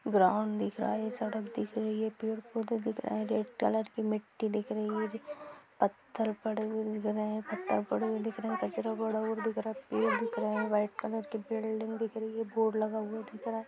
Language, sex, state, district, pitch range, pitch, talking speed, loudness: Hindi, female, Chhattisgarh, Kabirdham, 215-225 Hz, 220 Hz, 245 wpm, -34 LUFS